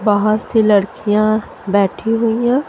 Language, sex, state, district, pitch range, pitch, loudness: Hindi, female, Haryana, Charkhi Dadri, 205-225 Hz, 215 Hz, -16 LUFS